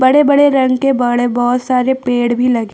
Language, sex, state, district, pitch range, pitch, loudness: Hindi, female, Chhattisgarh, Bastar, 245-265 Hz, 250 Hz, -13 LUFS